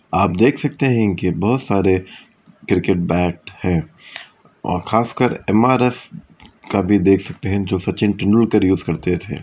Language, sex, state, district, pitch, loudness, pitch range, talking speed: Hindi, male, Bihar, Vaishali, 100 Hz, -18 LUFS, 95-110 Hz, 165 wpm